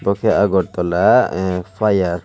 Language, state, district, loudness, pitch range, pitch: Kokborok, Tripura, West Tripura, -16 LUFS, 90-100 Hz, 95 Hz